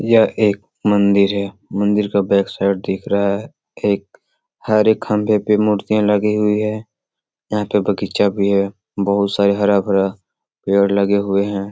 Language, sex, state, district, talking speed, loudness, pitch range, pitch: Hindi, male, Bihar, Saran, 165 wpm, -17 LUFS, 100-105 Hz, 100 Hz